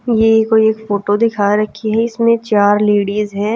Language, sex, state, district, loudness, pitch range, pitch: Hindi, female, Chhattisgarh, Raipur, -14 LUFS, 205-225 Hz, 215 Hz